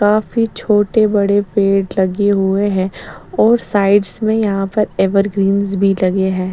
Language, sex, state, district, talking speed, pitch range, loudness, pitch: Hindi, female, Bihar, Patna, 140 wpm, 195-210 Hz, -15 LUFS, 200 Hz